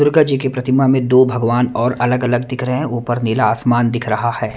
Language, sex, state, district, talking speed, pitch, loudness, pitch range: Hindi, male, Punjab, Kapurthala, 235 wpm, 125 Hz, -16 LUFS, 120-130 Hz